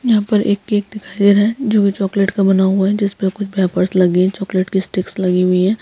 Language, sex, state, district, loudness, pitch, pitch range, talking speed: Hindi, female, Jharkhand, Sahebganj, -15 LUFS, 195 Hz, 185-205 Hz, 255 wpm